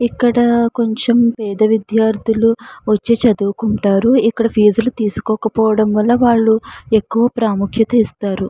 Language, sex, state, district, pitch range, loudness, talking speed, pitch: Telugu, female, Andhra Pradesh, Srikakulam, 215-235 Hz, -15 LUFS, 115 wpm, 225 Hz